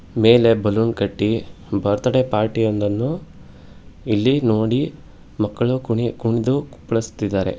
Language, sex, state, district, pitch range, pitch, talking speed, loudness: Kannada, male, Karnataka, Bangalore, 105-120 Hz, 110 Hz, 95 wpm, -20 LUFS